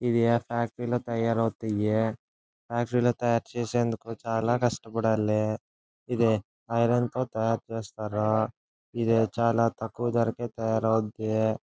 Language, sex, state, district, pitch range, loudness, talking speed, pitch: Telugu, male, Andhra Pradesh, Anantapur, 110-120 Hz, -28 LUFS, 130 wpm, 115 Hz